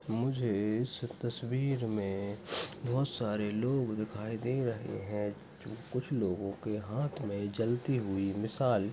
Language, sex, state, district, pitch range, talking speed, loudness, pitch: Hindi, male, Chhattisgarh, Bastar, 105-125 Hz, 135 wpm, -34 LUFS, 115 Hz